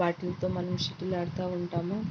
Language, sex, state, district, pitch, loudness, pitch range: Telugu, female, Andhra Pradesh, Guntur, 180 Hz, -32 LUFS, 175-185 Hz